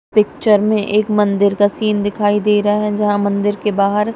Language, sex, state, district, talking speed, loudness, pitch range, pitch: Hindi, female, Punjab, Kapurthala, 200 wpm, -15 LUFS, 205-210 Hz, 210 Hz